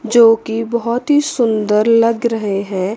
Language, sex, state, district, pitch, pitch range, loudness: Hindi, female, Chandigarh, Chandigarh, 230 Hz, 215-235 Hz, -15 LUFS